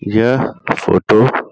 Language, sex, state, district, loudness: Hindi, male, Bihar, Gaya, -14 LUFS